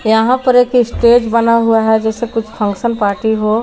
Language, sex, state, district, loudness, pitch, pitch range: Hindi, female, Jharkhand, Garhwa, -13 LUFS, 225 Hz, 220-235 Hz